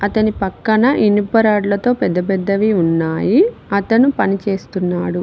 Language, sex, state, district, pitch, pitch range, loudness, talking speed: Telugu, female, Telangana, Mahabubabad, 200 Hz, 190-220 Hz, -16 LUFS, 125 wpm